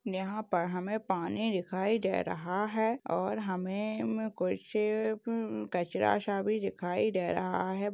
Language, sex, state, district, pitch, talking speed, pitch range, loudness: Hindi, female, Maharashtra, Chandrapur, 200 Hz, 135 wpm, 185-220 Hz, -33 LUFS